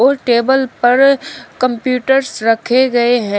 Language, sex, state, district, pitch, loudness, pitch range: Hindi, female, Uttar Pradesh, Shamli, 255 Hz, -13 LUFS, 240-265 Hz